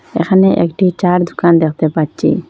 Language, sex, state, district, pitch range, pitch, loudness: Bengali, female, Assam, Hailakandi, 160-180 Hz, 170 Hz, -13 LUFS